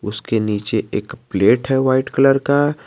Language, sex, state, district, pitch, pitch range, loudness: Hindi, male, Jharkhand, Garhwa, 130 Hz, 110-135 Hz, -17 LUFS